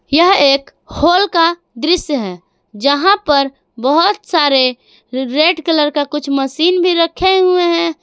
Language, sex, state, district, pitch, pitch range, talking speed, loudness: Hindi, female, Jharkhand, Garhwa, 310 Hz, 275-345 Hz, 140 wpm, -13 LUFS